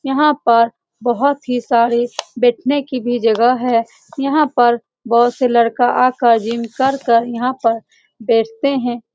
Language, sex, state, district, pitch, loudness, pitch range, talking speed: Hindi, female, Bihar, Saran, 240 Hz, -16 LUFS, 235-265 Hz, 155 wpm